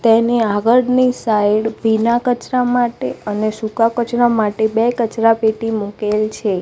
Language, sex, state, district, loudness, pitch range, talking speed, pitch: Gujarati, female, Gujarat, Gandhinagar, -16 LUFS, 215-240 Hz, 125 wpm, 225 Hz